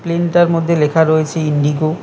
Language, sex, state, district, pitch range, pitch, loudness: Bengali, male, West Bengal, Cooch Behar, 155-170 Hz, 160 Hz, -14 LUFS